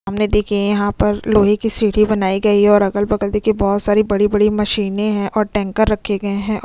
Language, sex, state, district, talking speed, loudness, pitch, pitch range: Hindi, female, Goa, North and South Goa, 225 wpm, -16 LUFS, 210 Hz, 205-215 Hz